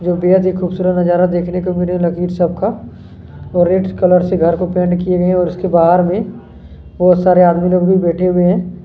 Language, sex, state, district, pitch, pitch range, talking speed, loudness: Hindi, male, Chhattisgarh, Kabirdham, 180 Hz, 175-185 Hz, 60 wpm, -14 LUFS